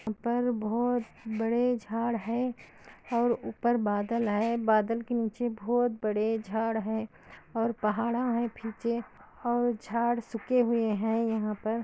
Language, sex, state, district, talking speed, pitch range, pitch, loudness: Hindi, female, Andhra Pradesh, Anantapur, 140 wpm, 220-240 Hz, 230 Hz, -30 LUFS